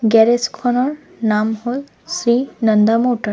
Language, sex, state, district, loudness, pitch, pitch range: Assamese, female, Assam, Sonitpur, -17 LUFS, 240 Hz, 220-260 Hz